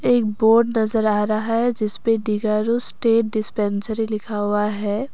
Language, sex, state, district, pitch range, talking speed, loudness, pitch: Hindi, female, Assam, Kamrup Metropolitan, 210-230 Hz, 150 wpm, -19 LUFS, 220 Hz